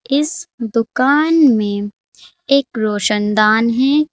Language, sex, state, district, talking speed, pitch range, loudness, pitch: Hindi, female, Uttar Pradesh, Saharanpur, 85 wpm, 215-285 Hz, -15 LUFS, 235 Hz